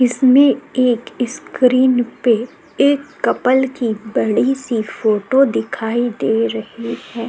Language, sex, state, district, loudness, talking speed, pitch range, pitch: Hindi, female, Uttar Pradesh, Jyotiba Phule Nagar, -16 LUFS, 115 wpm, 225-260 Hz, 245 Hz